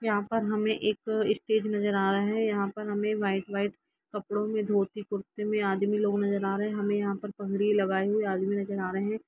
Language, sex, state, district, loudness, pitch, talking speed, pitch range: Hindi, female, Jharkhand, Jamtara, -29 LUFS, 205 Hz, 235 wpm, 200-215 Hz